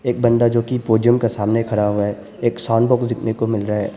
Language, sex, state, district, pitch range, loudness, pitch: Hindi, male, Arunachal Pradesh, Papum Pare, 105-120 Hz, -18 LUFS, 115 Hz